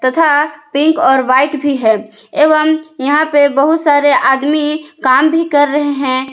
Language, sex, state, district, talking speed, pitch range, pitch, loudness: Hindi, female, Jharkhand, Palamu, 160 wpm, 265-305 Hz, 290 Hz, -12 LUFS